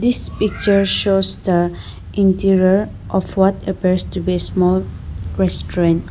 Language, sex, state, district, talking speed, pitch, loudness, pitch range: English, female, Nagaland, Dimapur, 120 wpm, 185 Hz, -17 LUFS, 175-195 Hz